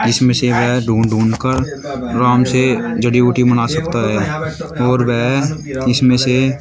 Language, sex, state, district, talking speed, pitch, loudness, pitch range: Hindi, male, Uttar Pradesh, Shamli, 155 wpm, 125 Hz, -15 LUFS, 120-130 Hz